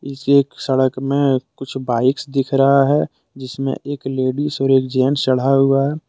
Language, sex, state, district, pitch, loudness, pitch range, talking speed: Hindi, male, Jharkhand, Deoghar, 135 Hz, -17 LUFS, 130-140 Hz, 175 wpm